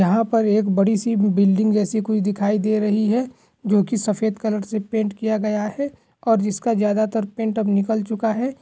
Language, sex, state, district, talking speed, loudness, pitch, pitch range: Hindi, male, Bihar, Gaya, 200 wpm, -20 LUFS, 215 Hz, 205-225 Hz